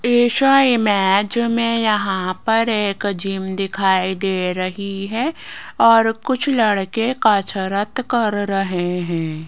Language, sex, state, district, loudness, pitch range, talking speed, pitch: Hindi, female, Rajasthan, Jaipur, -18 LUFS, 190-230 Hz, 115 wpm, 205 Hz